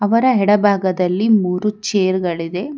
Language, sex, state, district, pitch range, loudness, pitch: Kannada, female, Karnataka, Bangalore, 185-210 Hz, -16 LUFS, 200 Hz